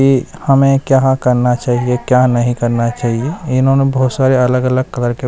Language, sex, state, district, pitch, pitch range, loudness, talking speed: Hindi, male, Bihar, West Champaran, 130 Hz, 120-135 Hz, -13 LUFS, 180 wpm